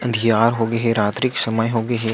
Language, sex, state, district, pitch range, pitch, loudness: Chhattisgarhi, male, Chhattisgarh, Sukma, 115-120 Hz, 115 Hz, -19 LUFS